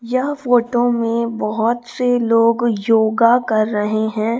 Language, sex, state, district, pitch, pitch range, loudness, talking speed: Hindi, female, Chhattisgarh, Raipur, 230 Hz, 220-240 Hz, -17 LUFS, 135 wpm